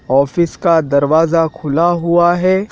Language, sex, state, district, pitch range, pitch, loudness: Hindi, male, Madhya Pradesh, Dhar, 155-175 Hz, 165 Hz, -14 LUFS